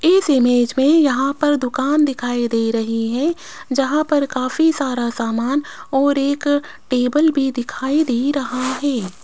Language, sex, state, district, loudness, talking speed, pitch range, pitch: Hindi, female, Rajasthan, Jaipur, -18 LUFS, 150 wpm, 245-290 Hz, 270 Hz